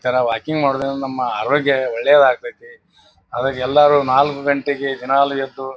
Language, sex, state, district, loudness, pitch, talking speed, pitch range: Kannada, male, Karnataka, Bijapur, -17 LUFS, 140 Hz, 145 wpm, 135-145 Hz